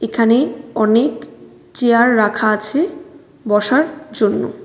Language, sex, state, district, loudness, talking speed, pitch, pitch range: Bengali, female, West Bengal, Cooch Behar, -16 LUFS, 90 wpm, 235 Hz, 215-305 Hz